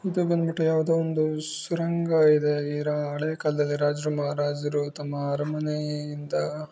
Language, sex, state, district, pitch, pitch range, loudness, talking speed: Kannada, female, Karnataka, Bijapur, 150 Hz, 145-160 Hz, -26 LUFS, 125 wpm